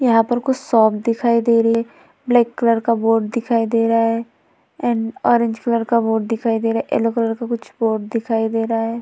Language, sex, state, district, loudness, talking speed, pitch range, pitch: Hindi, female, Uttar Pradesh, Varanasi, -18 LUFS, 225 wpm, 225-235 Hz, 230 Hz